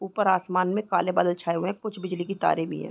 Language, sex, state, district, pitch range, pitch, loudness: Hindi, female, Chhattisgarh, Raigarh, 175-195 Hz, 185 Hz, -26 LUFS